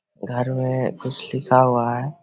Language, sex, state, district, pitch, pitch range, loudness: Hindi, male, Bihar, Vaishali, 130 Hz, 125-130 Hz, -21 LUFS